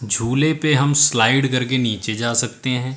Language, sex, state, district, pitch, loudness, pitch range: Hindi, male, Uttar Pradesh, Lucknow, 125 Hz, -17 LUFS, 120-135 Hz